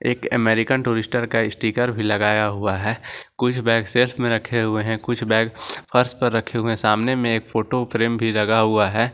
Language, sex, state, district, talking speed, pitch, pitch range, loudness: Hindi, male, Jharkhand, Garhwa, 210 wpm, 115 Hz, 110-120 Hz, -20 LUFS